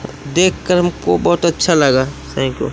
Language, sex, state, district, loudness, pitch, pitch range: Hindi, male, Madhya Pradesh, Umaria, -15 LUFS, 150 Hz, 130-175 Hz